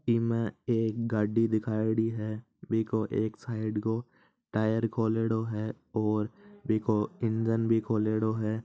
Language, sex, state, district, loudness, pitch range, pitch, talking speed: Marwari, male, Rajasthan, Nagaur, -30 LUFS, 110-115 Hz, 110 Hz, 125 wpm